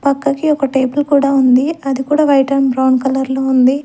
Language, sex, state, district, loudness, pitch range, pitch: Telugu, female, Andhra Pradesh, Sri Satya Sai, -13 LUFS, 265-285 Hz, 275 Hz